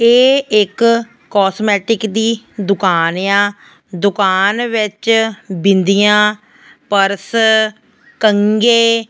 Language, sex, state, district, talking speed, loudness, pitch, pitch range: Punjabi, female, Punjab, Fazilka, 70 wpm, -13 LUFS, 210 Hz, 200-230 Hz